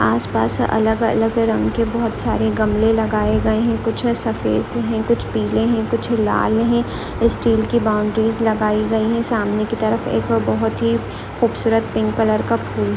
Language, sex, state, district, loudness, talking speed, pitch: Hindi, female, Uttar Pradesh, Hamirpur, -18 LUFS, 175 wpm, 220 Hz